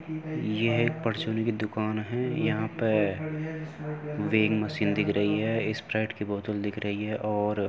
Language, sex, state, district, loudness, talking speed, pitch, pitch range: Hindi, male, Uttar Pradesh, Jyotiba Phule Nagar, -29 LUFS, 155 wpm, 110 Hz, 105-130 Hz